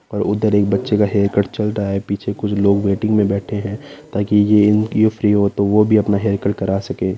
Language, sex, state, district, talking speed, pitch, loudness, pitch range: Hindi, male, Rajasthan, Nagaur, 235 wpm, 105 Hz, -17 LUFS, 100-105 Hz